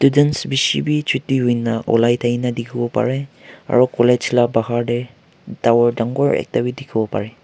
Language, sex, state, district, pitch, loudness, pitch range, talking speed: Nagamese, male, Nagaland, Kohima, 120 Hz, -18 LUFS, 120-135 Hz, 155 wpm